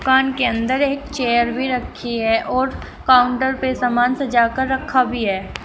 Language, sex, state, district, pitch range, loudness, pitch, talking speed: Hindi, female, Uttar Pradesh, Shamli, 240-265 Hz, -18 LUFS, 255 Hz, 180 wpm